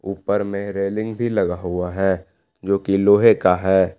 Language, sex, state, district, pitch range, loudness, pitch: Hindi, male, Jharkhand, Palamu, 95-100 Hz, -19 LUFS, 100 Hz